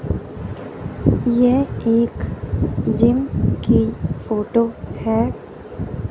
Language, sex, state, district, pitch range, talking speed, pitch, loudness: Hindi, female, Punjab, Fazilka, 225-245 Hz, 60 wpm, 230 Hz, -19 LUFS